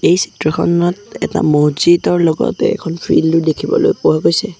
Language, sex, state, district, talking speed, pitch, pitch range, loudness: Assamese, male, Assam, Sonitpur, 130 wpm, 165 Hz, 155-175 Hz, -14 LUFS